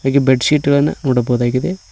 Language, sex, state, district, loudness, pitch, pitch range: Kannada, male, Karnataka, Koppal, -15 LUFS, 135 Hz, 125-145 Hz